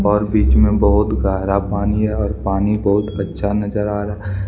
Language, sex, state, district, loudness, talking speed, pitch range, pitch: Hindi, male, Jharkhand, Deoghar, -17 LUFS, 190 wpm, 100-105 Hz, 100 Hz